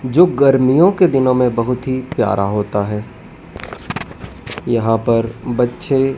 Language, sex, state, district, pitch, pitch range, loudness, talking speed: Hindi, male, Madhya Pradesh, Dhar, 125 Hz, 115-135 Hz, -16 LUFS, 125 wpm